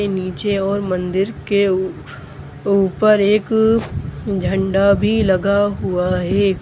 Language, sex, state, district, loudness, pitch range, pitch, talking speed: Hindi, male, Bihar, Gopalganj, -17 LUFS, 190-205 Hz, 200 Hz, 120 wpm